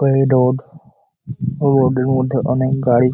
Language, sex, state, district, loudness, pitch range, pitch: Bengali, male, West Bengal, Malda, -16 LUFS, 130-135 Hz, 130 Hz